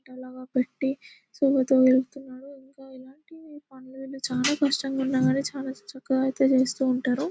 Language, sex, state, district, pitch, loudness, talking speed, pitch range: Telugu, female, Telangana, Nalgonda, 265 Hz, -25 LUFS, 75 wpm, 260-275 Hz